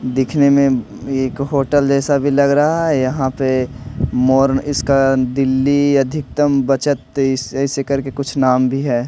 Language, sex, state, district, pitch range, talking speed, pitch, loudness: Hindi, male, Delhi, New Delhi, 130-140 Hz, 145 wpm, 135 Hz, -16 LUFS